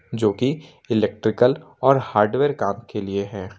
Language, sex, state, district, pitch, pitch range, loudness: Hindi, male, Jharkhand, Ranchi, 110 Hz, 100-130 Hz, -21 LUFS